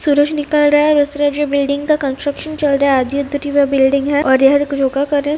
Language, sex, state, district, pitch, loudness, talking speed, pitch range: Hindi, female, Rajasthan, Churu, 285 Hz, -14 LUFS, 280 wpm, 280-295 Hz